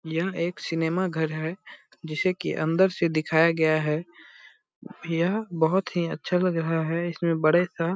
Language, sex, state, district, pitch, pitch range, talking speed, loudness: Hindi, male, Bihar, Purnia, 170 Hz, 160-180 Hz, 175 wpm, -25 LUFS